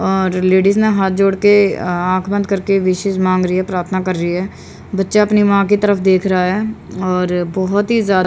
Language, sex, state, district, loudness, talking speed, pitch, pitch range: Hindi, female, Haryana, Rohtak, -15 LUFS, 225 wpm, 190 Hz, 185-200 Hz